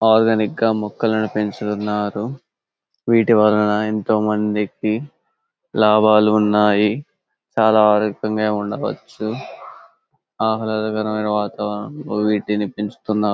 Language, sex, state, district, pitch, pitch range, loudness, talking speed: Telugu, male, Telangana, Karimnagar, 105 Hz, 105-110 Hz, -19 LUFS, 70 wpm